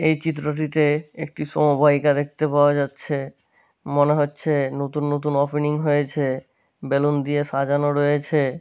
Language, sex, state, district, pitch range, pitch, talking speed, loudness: Bengali, male, West Bengal, Malda, 145-150 Hz, 145 Hz, 120 wpm, -21 LUFS